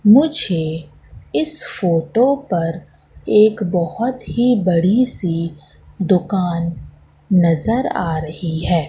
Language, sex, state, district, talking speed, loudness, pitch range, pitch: Hindi, female, Madhya Pradesh, Katni, 95 wpm, -17 LUFS, 165-220 Hz, 180 Hz